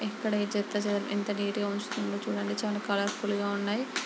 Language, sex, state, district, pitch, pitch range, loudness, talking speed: Telugu, female, Andhra Pradesh, Guntur, 205 Hz, 200-210 Hz, -31 LUFS, 190 wpm